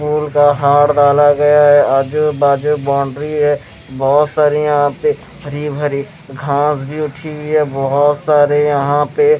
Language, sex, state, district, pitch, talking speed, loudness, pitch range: Hindi, male, Maharashtra, Mumbai Suburban, 145 Hz, 135 wpm, -13 LUFS, 140-150 Hz